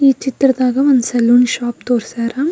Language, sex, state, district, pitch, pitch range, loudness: Kannada, female, Karnataka, Belgaum, 250 Hz, 240-270 Hz, -14 LUFS